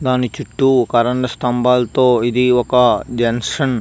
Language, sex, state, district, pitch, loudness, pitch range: Telugu, male, Andhra Pradesh, Visakhapatnam, 125 Hz, -15 LUFS, 120-130 Hz